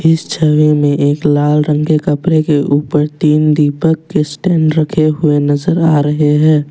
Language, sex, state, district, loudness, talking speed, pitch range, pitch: Hindi, male, Assam, Kamrup Metropolitan, -12 LUFS, 180 wpm, 150-155 Hz, 150 Hz